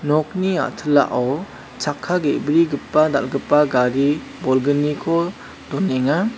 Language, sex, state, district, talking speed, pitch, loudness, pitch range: Garo, male, Meghalaya, South Garo Hills, 75 wpm, 145 Hz, -19 LUFS, 135-165 Hz